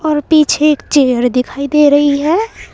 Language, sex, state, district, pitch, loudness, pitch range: Hindi, female, Uttar Pradesh, Saharanpur, 295 Hz, -12 LUFS, 280-305 Hz